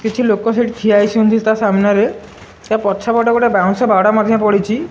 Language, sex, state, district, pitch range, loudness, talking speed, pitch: Odia, male, Odisha, Malkangiri, 205-230 Hz, -14 LUFS, 170 wpm, 220 Hz